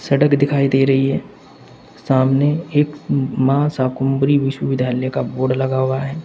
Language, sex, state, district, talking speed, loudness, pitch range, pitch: Hindi, male, Uttar Pradesh, Saharanpur, 145 wpm, -17 LUFS, 130-140 Hz, 135 Hz